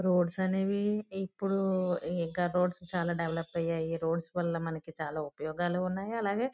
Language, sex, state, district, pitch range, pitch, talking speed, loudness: Telugu, female, Andhra Pradesh, Guntur, 165-190 Hz, 175 Hz, 110 wpm, -32 LUFS